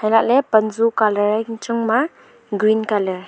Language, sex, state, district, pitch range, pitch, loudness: Wancho, female, Arunachal Pradesh, Longding, 215-230 Hz, 220 Hz, -18 LUFS